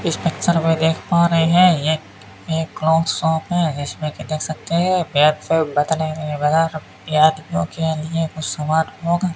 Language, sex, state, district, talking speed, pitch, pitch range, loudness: Hindi, male, Rajasthan, Bikaner, 165 wpm, 160 Hz, 155-165 Hz, -19 LUFS